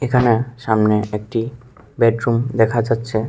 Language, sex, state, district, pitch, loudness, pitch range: Bengali, male, Tripura, West Tripura, 115 Hz, -18 LUFS, 110-120 Hz